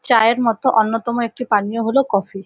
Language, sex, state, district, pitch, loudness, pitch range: Bengali, female, West Bengal, North 24 Parganas, 230 Hz, -17 LUFS, 215-240 Hz